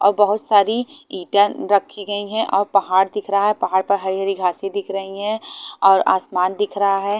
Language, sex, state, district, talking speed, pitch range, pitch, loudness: Hindi, female, Haryana, Charkhi Dadri, 210 wpm, 195-205 Hz, 200 Hz, -19 LUFS